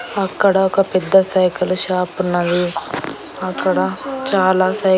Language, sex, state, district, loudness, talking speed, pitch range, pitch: Telugu, female, Andhra Pradesh, Annamaya, -17 LUFS, 110 wpm, 180-195 Hz, 185 Hz